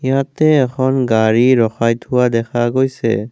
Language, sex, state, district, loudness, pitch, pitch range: Assamese, male, Assam, Kamrup Metropolitan, -15 LUFS, 125 Hz, 115-130 Hz